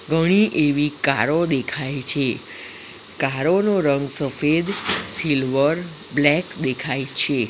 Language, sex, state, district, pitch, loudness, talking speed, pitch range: Gujarati, female, Gujarat, Valsad, 145 Hz, -20 LUFS, 105 wpm, 135-165 Hz